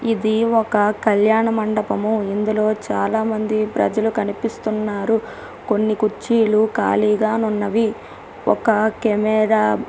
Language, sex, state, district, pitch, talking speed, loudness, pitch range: Telugu, female, Telangana, Karimnagar, 215 Hz, 95 wpm, -19 LUFS, 210-220 Hz